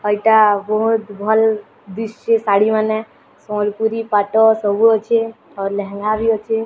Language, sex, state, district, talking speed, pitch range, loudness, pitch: Odia, female, Odisha, Sambalpur, 125 wpm, 205-225 Hz, -17 LUFS, 220 Hz